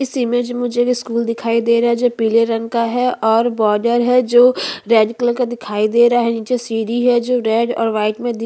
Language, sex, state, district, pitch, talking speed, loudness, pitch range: Hindi, female, Chhattisgarh, Bastar, 235 Hz, 250 wpm, -16 LUFS, 225-245 Hz